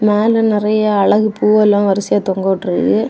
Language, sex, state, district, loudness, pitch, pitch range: Tamil, female, Tamil Nadu, Kanyakumari, -14 LUFS, 210 Hz, 200-215 Hz